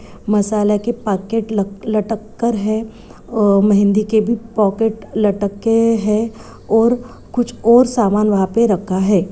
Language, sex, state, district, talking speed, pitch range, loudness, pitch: Hindi, female, Bihar, Sitamarhi, 150 wpm, 205-225 Hz, -16 LUFS, 215 Hz